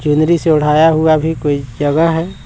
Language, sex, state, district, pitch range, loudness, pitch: Hindi, male, Jharkhand, Palamu, 150-165 Hz, -13 LUFS, 155 Hz